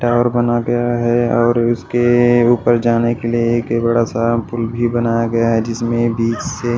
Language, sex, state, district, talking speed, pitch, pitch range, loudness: Hindi, male, Odisha, Malkangiri, 195 wpm, 120 Hz, 115-120 Hz, -16 LUFS